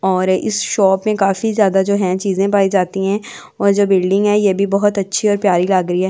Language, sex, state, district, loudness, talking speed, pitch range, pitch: Hindi, female, Delhi, New Delhi, -15 LUFS, 245 wpm, 190-205 Hz, 195 Hz